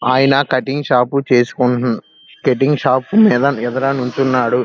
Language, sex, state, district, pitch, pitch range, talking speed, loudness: Telugu, male, Andhra Pradesh, Krishna, 130 Hz, 125-140 Hz, 130 wpm, -15 LUFS